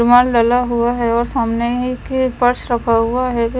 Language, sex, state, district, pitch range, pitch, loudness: Hindi, female, Himachal Pradesh, Shimla, 235-250 Hz, 240 Hz, -16 LUFS